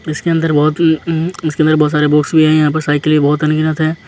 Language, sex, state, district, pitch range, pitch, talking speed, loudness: Hindi, male, Bihar, Muzaffarpur, 150-160 Hz, 155 Hz, 250 wpm, -13 LUFS